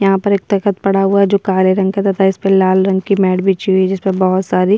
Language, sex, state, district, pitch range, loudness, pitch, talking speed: Hindi, female, Bihar, Kishanganj, 190-195 Hz, -13 LUFS, 195 Hz, 325 wpm